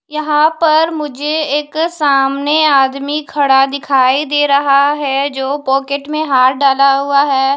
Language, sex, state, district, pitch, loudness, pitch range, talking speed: Hindi, female, Odisha, Khordha, 280 Hz, -13 LUFS, 275-300 Hz, 145 wpm